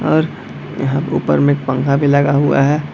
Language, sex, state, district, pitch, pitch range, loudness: Hindi, male, Bihar, Darbhanga, 140 Hz, 140-145 Hz, -15 LUFS